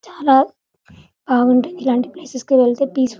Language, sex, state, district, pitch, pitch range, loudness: Telugu, female, Telangana, Karimnagar, 260 Hz, 250-280 Hz, -16 LUFS